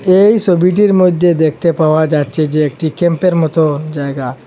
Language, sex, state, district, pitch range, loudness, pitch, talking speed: Bengali, male, Assam, Hailakandi, 155-180 Hz, -12 LUFS, 160 Hz, 150 wpm